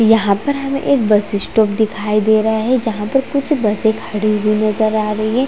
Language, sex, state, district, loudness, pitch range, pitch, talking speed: Hindi, female, Chhattisgarh, Raigarh, -16 LUFS, 210-245 Hz, 220 Hz, 230 wpm